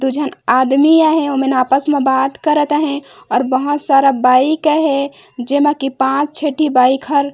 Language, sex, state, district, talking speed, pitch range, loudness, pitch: Chhattisgarhi, female, Chhattisgarh, Raigarh, 180 wpm, 265-295 Hz, -14 LUFS, 280 Hz